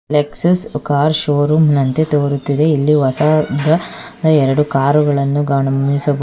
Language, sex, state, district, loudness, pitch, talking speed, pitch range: Kannada, female, Karnataka, Bangalore, -14 LUFS, 145 Hz, 115 wpm, 140-155 Hz